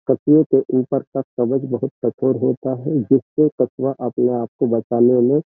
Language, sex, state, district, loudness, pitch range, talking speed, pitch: Hindi, male, Uttar Pradesh, Jyotiba Phule Nagar, -19 LUFS, 120-135 Hz, 185 wpm, 130 Hz